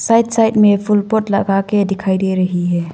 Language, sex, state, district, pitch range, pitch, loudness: Hindi, female, Arunachal Pradesh, Longding, 190-215 Hz, 200 Hz, -15 LUFS